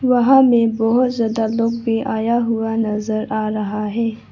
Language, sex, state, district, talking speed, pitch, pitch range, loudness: Hindi, female, Arunachal Pradesh, Lower Dibang Valley, 165 wpm, 225 Hz, 220-235 Hz, -18 LUFS